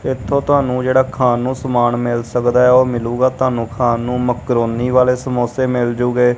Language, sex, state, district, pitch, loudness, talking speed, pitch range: Punjabi, male, Punjab, Kapurthala, 125 Hz, -16 LUFS, 170 wpm, 120-130 Hz